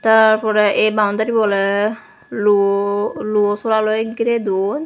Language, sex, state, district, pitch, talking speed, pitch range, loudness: Chakma, female, Tripura, West Tripura, 215 Hz, 125 wpm, 205-220 Hz, -16 LUFS